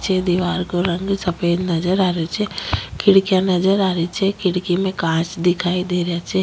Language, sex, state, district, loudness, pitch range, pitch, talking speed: Rajasthani, female, Rajasthan, Nagaur, -19 LUFS, 175-190 Hz, 180 Hz, 195 wpm